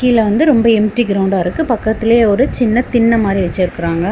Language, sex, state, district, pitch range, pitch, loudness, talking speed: Tamil, female, Tamil Nadu, Kanyakumari, 195-235 Hz, 225 Hz, -13 LUFS, 175 wpm